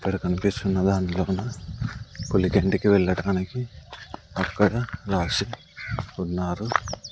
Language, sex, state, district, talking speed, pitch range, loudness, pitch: Telugu, male, Andhra Pradesh, Sri Satya Sai, 60 wpm, 95-105 Hz, -25 LUFS, 95 Hz